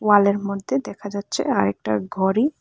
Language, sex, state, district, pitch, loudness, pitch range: Bengali, female, Tripura, West Tripura, 200 Hz, -22 LUFS, 190-205 Hz